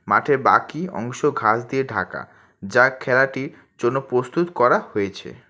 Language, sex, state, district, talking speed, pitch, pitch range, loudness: Bengali, male, West Bengal, Alipurduar, 130 wpm, 125 Hz, 105-135 Hz, -20 LUFS